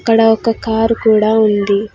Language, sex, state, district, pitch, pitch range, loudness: Telugu, female, Telangana, Hyderabad, 220 Hz, 215-225 Hz, -13 LUFS